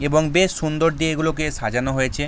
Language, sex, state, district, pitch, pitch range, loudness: Bengali, male, West Bengal, Jalpaiguri, 155 Hz, 145-160 Hz, -20 LUFS